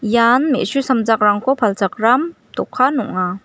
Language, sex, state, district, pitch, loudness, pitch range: Garo, female, Meghalaya, West Garo Hills, 235 Hz, -16 LUFS, 210-270 Hz